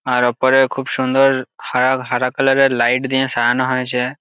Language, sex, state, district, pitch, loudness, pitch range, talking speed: Bengali, male, West Bengal, Jalpaiguri, 130 Hz, -16 LUFS, 125-135 Hz, 185 wpm